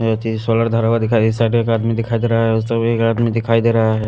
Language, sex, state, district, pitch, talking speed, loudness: Hindi, male, Haryana, Rohtak, 115 Hz, 325 wpm, -16 LUFS